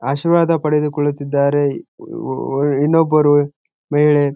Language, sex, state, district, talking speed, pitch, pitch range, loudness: Kannada, male, Karnataka, Gulbarga, 70 wpm, 145 Hz, 140-150 Hz, -16 LUFS